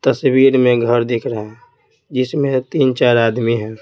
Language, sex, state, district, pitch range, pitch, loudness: Hindi, male, Bihar, Patna, 120-135 Hz, 130 Hz, -15 LUFS